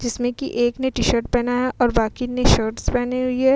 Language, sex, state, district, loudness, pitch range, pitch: Hindi, female, Uttar Pradesh, Muzaffarnagar, -21 LUFS, 240-255 Hz, 245 Hz